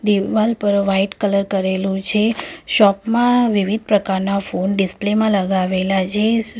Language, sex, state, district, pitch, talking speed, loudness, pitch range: Gujarati, female, Gujarat, Valsad, 200 Hz, 135 wpm, -17 LUFS, 195-215 Hz